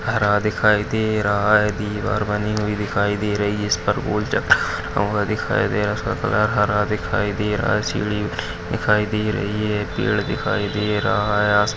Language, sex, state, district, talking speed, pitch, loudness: Hindi, male, Maharashtra, Nagpur, 175 wpm, 105 Hz, -20 LUFS